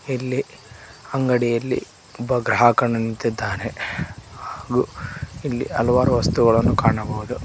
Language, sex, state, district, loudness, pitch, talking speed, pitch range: Kannada, male, Karnataka, Koppal, -21 LUFS, 120 Hz, 80 wpm, 115-125 Hz